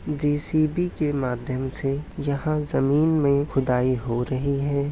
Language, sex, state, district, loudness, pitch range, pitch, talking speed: Hindi, male, Uttar Pradesh, Hamirpur, -24 LUFS, 130-150 Hz, 140 Hz, 135 wpm